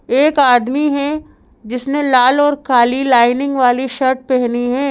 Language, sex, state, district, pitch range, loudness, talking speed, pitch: Hindi, female, Madhya Pradesh, Bhopal, 250-280 Hz, -14 LUFS, 145 wpm, 260 Hz